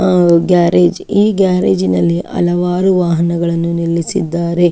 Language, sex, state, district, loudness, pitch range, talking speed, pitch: Kannada, female, Karnataka, Shimoga, -13 LUFS, 170-180 Hz, 115 wpm, 175 Hz